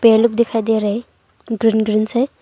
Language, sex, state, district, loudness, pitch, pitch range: Hindi, female, Arunachal Pradesh, Longding, -17 LUFS, 225 Hz, 220-235 Hz